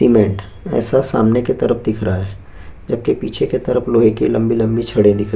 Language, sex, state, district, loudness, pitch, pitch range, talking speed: Hindi, male, Chhattisgarh, Bastar, -16 LUFS, 110 Hz, 100-115 Hz, 245 wpm